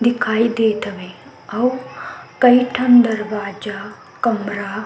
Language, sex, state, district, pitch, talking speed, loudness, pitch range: Chhattisgarhi, female, Chhattisgarh, Sukma, 220 Hz, 110 wpm, -17 LUFS, 205-245 Hz